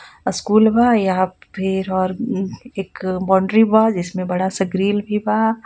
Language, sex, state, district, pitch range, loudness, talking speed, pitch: Bhojpuri, female, Jharkhand, Palamu, 185-220 Hz, -18 LUFS, 160 wpm, 195 Hz